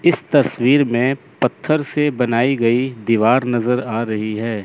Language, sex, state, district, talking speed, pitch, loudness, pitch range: Hindi, male, Chandigarh, Chandigarh, 155 wpm, 125 Hz, -17 LUFS, 115-140 Hz